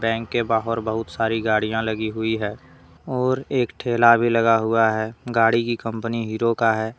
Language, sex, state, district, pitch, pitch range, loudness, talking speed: Hindi, male, Jharkhand, Deoghar, 115 Hz, 110-115 Hz, -21 LUFS, 190 wpm